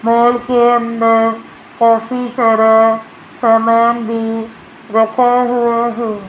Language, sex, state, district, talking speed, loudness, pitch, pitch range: Hindi, female, Rajasthan, Jaipur, 95 wpm, -13 LUFS, 230 Hz, 225-240 Hz